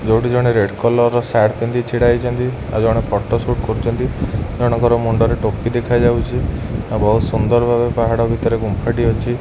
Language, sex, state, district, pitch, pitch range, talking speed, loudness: Odia, male, Odisha, Khordha, 115 Hz, 110-120 Hz, 180 wpm, -17 LUFS